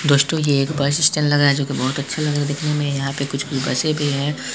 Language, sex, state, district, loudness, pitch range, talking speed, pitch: Hindi, male, Bihar, Saharsa, -19 LUFS, 140-150 Hz, 330 wpm, 145 Hz